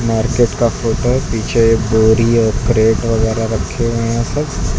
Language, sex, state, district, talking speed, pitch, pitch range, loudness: Hindi, male, Uttar Pradesh, Lucknow, 175 wpm, 115 Hz, 110-115 Hz, -15 LUFS